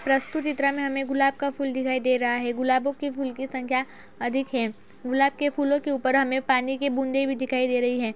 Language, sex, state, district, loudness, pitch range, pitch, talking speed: Hindi, female, Uttar Pradesh, Etah, -25 LUFS, 255-275 Hz, 270 Hz, 235 wpm